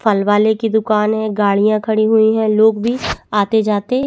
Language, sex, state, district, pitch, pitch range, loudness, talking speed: Hindi, female, Chhattisgarh, Bastar, 215 Hz, 210-220 Hz, -15 LUFS, 190 wpm